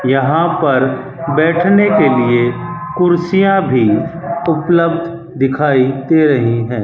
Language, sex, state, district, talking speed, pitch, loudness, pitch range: Hindi, male, Rajasthan, Bikaner, 105 wpm, 160 Hz, -13 LUFS, 130-175 Hz